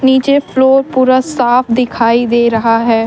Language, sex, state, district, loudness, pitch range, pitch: Hindi, female, Jharkhand, Deoghar, -11 LUFS, 235-265 Hz, 250 Hz